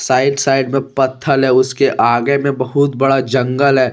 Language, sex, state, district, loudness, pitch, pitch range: Hindi, male, Jharkhand, Deoghar, -14 LUFS, 135 Hz, 130-140 Hz